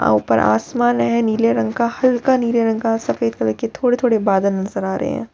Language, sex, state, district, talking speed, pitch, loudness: Hindi, female, Bihar, Katihar, 215 wpm, 195 Hz, -18 LUFS